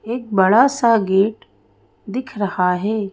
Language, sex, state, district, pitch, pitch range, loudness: Hindi, female, Madhya Pradesh, Bhopal, 210 Hz, 195-240 Hz, -17 LUFS